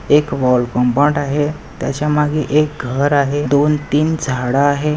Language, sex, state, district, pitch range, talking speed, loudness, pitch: Marathi, male, Maharashtra, Nagpur, 140-150 Hz, 145 wpm, -16 LUFS, 145 Hz